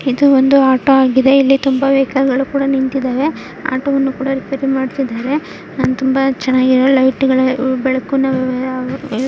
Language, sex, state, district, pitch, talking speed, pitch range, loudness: Kannada, female, Karnataka, Dharwad, 265 Hz, 110 wpm, 260-270 Hz, -14 LUFS